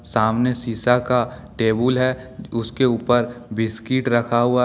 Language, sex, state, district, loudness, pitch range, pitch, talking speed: Hindi, male, Jharkhand, Deoghar, -20 LUFS, 115-125 Hz, 120 Hz, 140 wpm